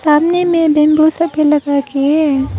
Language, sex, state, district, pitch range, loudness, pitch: Hindi, female, Arunachal Pradesh, Papum Pare, 285-320 Hz, -12 LUFS, 300 Hz